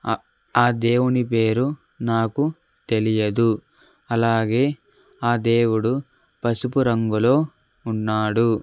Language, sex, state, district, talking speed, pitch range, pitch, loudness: Telugu, male, Andhra Pradesh, Sri Satya Sai, 85 wpm, 115-125 Hz, 115 Hz, -21 LUFS